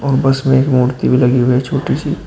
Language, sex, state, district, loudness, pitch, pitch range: Hindi, male, Uttar Pradesh, Shamli, -14 LUFS, 130 Hz, 125-135 Hz